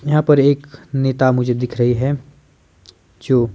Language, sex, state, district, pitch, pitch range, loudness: Hindi, male, Himachal Pradesh, Shimla, 130 Hz, 120-140 Hz, -17 LUFS